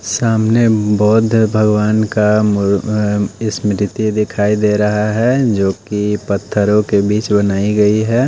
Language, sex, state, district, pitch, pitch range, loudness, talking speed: Hindi, male, Odisha, Nuapada, 105 Hz, 105-110 Hz, -14 LUFS, 140 wpm